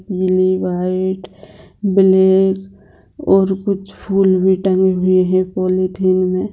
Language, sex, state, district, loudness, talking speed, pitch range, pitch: Hindi, female, Bihar, Jamui, -15 LUFS, 110 wpm, 185-195 Hz, 190 Hz